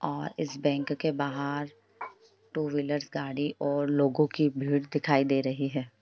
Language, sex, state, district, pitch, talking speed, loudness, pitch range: Hindi, male, Bihar, Lakhisarai, 145 Hz, 160 wpm, -29 LUFS, 140-150 Hz